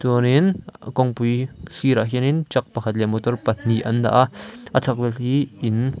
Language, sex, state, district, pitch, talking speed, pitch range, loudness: Mizo, male, Mizoram, Aizawl, 125 Hz, 180 wpm, 115-130 Hz, -21 LUFS